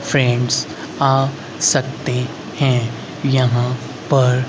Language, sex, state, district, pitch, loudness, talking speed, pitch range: Hindi, male, Haryana, Rohtak, 130 Hz, -18 LUFS, 80 wpm, 125-140 Hz